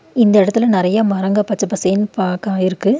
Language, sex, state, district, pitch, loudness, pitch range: Tamil, female, Tamil Nadu, Nilgiris, 200 Hz, -15 LUFS, 190-210 Hz